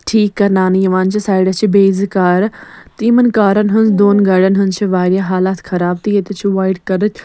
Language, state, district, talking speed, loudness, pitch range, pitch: Kashmiri, Punjab, Kapurthala, 200 wpm, -13 LUFS, 190-205 Hz, 195 Hz